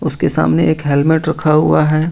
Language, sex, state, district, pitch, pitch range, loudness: Hindi, male, Jharkhand, Ranchi, 155 Hz, 150-160 Hz, -13 LUFS